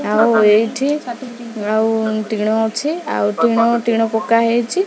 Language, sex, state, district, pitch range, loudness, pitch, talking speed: Odia, female, Odisha, Khordha, 220-240 Hz, -16 LUFS, 225 Hz, 125 wpm